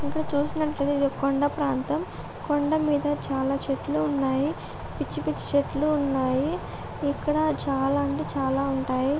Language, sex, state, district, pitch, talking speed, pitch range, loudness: Telugu, female, Andhra Pradesh, Guntur, 285 Hz, 130 wpm, 270-295 Hz, -26 LUFS